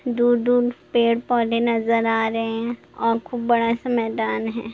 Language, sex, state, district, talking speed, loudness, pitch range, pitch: Hindi, female, Bihar, Gopalganj, 140 wpm, -21 LUFS, 225-240 Hz, 230 Hz